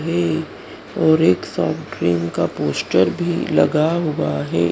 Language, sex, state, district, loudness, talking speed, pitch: Hindi, female, Madhya Pradesh, Dhar, -19 LUFS, 140 wpm, 155 Hz